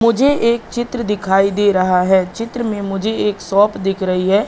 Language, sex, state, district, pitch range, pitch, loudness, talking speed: Hindi, male, Madhya Pradesh, Katni, 195-230 Hz, 205 Hz, -16 LUFS, 200 wpm